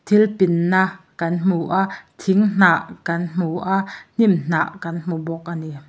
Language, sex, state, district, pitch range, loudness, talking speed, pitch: Mizo, male, Mizoram, Aizawl, 170-195 Hz, -20 LUFS, 165 wpm, 180 Hz